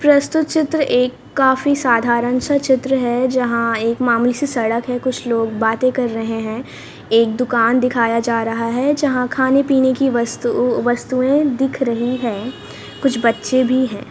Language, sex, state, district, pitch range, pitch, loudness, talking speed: Hindi, female, Haryana, Rohtak, 235-265 Hz, 250 Hz, -17 LUFS, 160 wpm